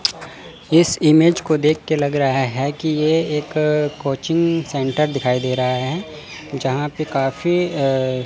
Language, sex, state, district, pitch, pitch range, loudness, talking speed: Hindi, male, Chandigarh, Chandigarh, 150 Hz, 135-155 Hz, -18 LUFS, 145 wpm